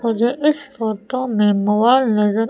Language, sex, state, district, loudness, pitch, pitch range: Hindi, female, Madhya Pradesh, Umaria, -17 LUFS, 230 Hz, 210-255 Hz